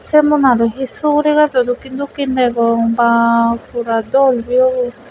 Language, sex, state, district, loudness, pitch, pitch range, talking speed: Chakma, female, Tripura, West Tripura, -14 LUFS, 250 Hz, 235-275 Hz, 165 wpm